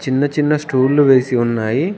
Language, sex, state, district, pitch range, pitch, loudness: Telugu, male, Telangana, Komaram Bheem, 130-150 Hz, 135 Hz, -15 LUFS